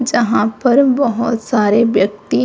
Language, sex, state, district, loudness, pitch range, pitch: Hindi, female, Uttar Pradesh, Jyotiba Phule Nagar, -14 LUFS, 210-250 Hz, 230 Hz